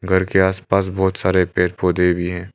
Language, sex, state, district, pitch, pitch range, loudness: Hindi, male, Arunachal Pradesh, Longding, 95 Hz, 90-95 Hz, -18 LUFS